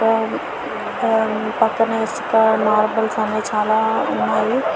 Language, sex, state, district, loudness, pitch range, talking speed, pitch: Telugu, female, Andhra Pradesh, Visakhapatnam, -19 LUFS, 215-225 Hz, 90 wpm, 220 Hz